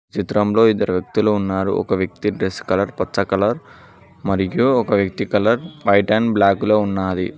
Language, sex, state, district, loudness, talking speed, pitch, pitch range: Telugu, male, Telangana, Mahabubabad, -18 LUFS, 155 wpm, 100 Hz, 95-105 Hz